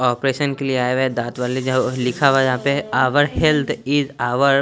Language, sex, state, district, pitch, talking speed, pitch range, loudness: Hindi, male, Chandigarh, Chandigarh, 130 Hz, 245 wpm, 125-140 Hz, -19 LUFS